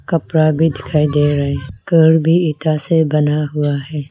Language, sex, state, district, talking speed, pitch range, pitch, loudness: Hindi, female, Arunachal Pradesh, Lower Dibang Valley, 190 wpm, 145-160 Hz, 150 Hz, -15 LUFS